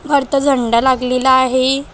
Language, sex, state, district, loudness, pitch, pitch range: Marathi, female, Maharashtra, Aurangabad, -14 LUFS, 260 Hz, 255-275 Hz